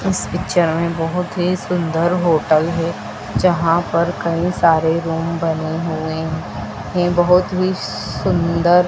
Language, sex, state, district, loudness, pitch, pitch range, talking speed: Hindi, female, Madhya Pradesh, Dhar, -18 LUFS, 170 Hz, 160-175 Hz, 130 wpm